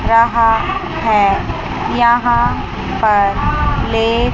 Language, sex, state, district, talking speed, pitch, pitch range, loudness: Hindi, female, Chandigarh, Chandigarh, 70 wpm, 225 Hz, 215-235 Hz, -14 LUFS